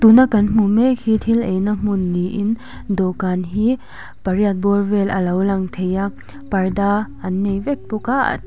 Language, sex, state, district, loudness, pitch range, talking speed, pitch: Mizo, female, Mizoram, Aizawl, -18 LUFS, 190-220 Hz, 170 wpm, 200 Hz